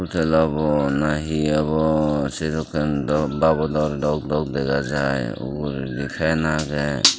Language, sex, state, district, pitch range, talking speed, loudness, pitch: Chakma, male, Tripura, Dhalai, 70-80 Hz, 125 wpm, -21 LUFS, 75 Hz